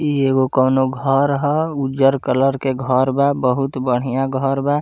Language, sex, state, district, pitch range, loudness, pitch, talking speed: Bhojpuri, male, Bihar, Muzaffarpur, 130-140 Hz, -18 LUFS, 135 Hz, 175 wpm